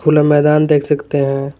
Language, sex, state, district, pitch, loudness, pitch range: Hindi, male, Jharkhand, Garhwa, 150 Hz, -13 LUFS, 140-150 Hz